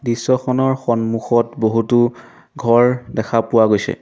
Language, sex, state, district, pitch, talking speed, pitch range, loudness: Assamese, male, Assam, Sonitpur, 120 Hz, 105 wpm, 115-125 Hz, -17 LUFS